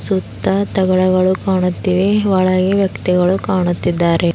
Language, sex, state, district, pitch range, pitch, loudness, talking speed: Kannada, female, Karnataka, Bidar, 180-190 Hz, 185 Hz, -15 LUFS, 85 wpm